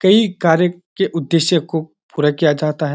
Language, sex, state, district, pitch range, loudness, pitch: Hindi, male, Uttarakhand, Uttarkashi, 155-180 Hz, -17 LUFS, 165 Hz